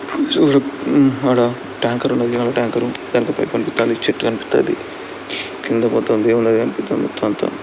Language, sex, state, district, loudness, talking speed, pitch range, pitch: Telugu, male, Andhra Pradesh, Srikakulam, -18 LUFS, 140 wpm, 120-140 Hz, 120 Hz